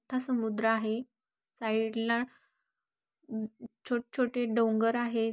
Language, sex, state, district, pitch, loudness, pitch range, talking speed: Marathi, female, Maharashtra, Aurangabad, 230 Hz, -31 LUFS, 225-245 Hz, 90 wpm